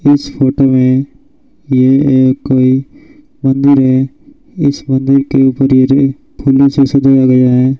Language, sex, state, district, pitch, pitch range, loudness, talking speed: Hindi, male, Rajasthan, Bikaner, 135 Hz, 130-140 Hz, -10 LUFS, 125 wpm